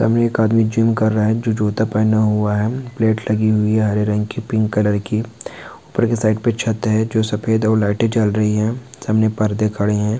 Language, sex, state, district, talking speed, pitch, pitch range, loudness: Hindi, male, Uttar Pradesh, Varanasi, 210 wpm, 110 Hz, 105-115 Hz, -18 LUFS